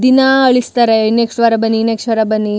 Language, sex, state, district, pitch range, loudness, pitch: Kannada, female, Karnataka, Chamarajanagar, 225-250 Hz, -12 LUFS, 230 Hz